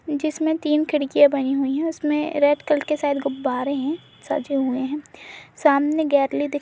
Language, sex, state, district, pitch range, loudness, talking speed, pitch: Hindi, female, Uttar Pradesh, Budaun, 280-300 Hz, -21 LUFS, 180 wpm, 290 Hz